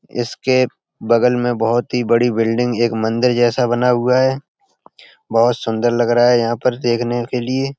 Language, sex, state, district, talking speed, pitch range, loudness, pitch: Hindi, male, Uttar Pradesh, Etah, 185 wpm, 115-125 Hz, -16 LUFS, 120 Hz